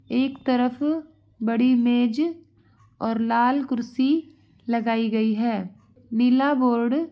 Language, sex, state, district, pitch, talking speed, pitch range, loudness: Hindi, female, Uttar Pradesh, Varanasi, 245 Hz, 120 wpm, 230-270 Hz, -23 LUFS